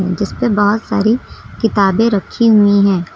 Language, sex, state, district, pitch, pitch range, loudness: Hindi, female, Uttar Pradesh, Lucknow, 205 Hz, 200-225 Hz, -13 LUFS